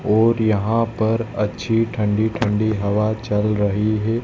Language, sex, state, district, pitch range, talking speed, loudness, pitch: Hindi, male, Madhya Pradesh, Dhar, 105-115 Hz, 140 wpm, -20 LUFS, 110 Hz